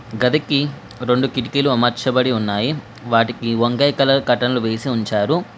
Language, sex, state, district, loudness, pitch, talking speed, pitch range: Telugu, female, Telangana, Mahabubabad, -18 LUFS, 125 Hz, 130 wpm, 115-135 Hz